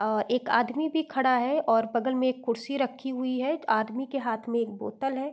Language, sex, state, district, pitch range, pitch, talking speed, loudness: Hindi, female, Uttar Pradesh, Varanasi, 235-270 Hz, 255 Hz, 235 wpm, -28 LUFS